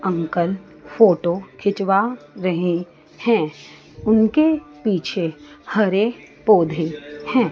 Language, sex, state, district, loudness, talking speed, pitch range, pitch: Hindi, female, Chandigarh, Chandigarh, -20 LUFS, 80 wpm, 170-220 Hz, 190 Hz